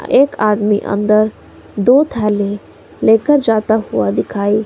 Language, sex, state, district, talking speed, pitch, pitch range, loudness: Hindi, female, Himachal Pradesh, Shimla, 115 wpm, 215 Hz, 210-240 Hz, -14 LUFS